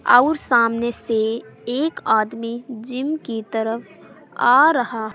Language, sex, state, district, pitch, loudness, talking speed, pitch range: Hindi, female, Uttar Pradesh, Saharanpur, 235 Hz, -20 LUFS, 115 wpm, 225-255 Hz